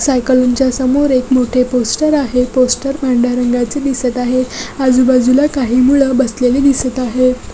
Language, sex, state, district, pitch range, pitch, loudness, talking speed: Marathi, female, Maharashtra, Dhule, 250-265 Hz, 255 Hz, -13 LUFS, 135 wpm